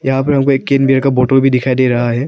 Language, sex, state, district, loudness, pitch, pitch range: Hindi, male, Arunachal Pradesh, Papum Pare, -12 LUFS, 135 Hz, 130-135 Hz